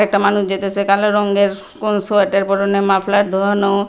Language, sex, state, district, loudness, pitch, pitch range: Bengali, female, Tripura, West Tripura, -16 LUFS, 200 Hz, 195-205 Hz